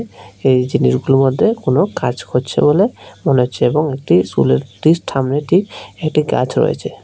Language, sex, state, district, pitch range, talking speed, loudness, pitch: Bengali, male, Tripura, West Tripura, 125-155 Hz, 145 wpm, -15 LUFS, 135 Hz